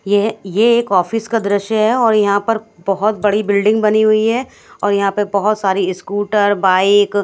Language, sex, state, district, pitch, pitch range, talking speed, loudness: Hindi, female, Haryana, Charkhi Dadri, 205 Hz, 200-220 Hz, 200 wpm, -15 LUFS